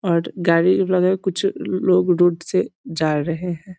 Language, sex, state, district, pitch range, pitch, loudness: Hindi, male, Bihar, East Champaran, 170-185 Hz, 180 Hz, -19 LUFS